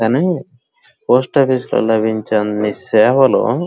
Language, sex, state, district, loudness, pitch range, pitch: Telugu, male, Andhra Pradesh, Krishna, -15 LUFS, 110-130 Hz, 110 Hz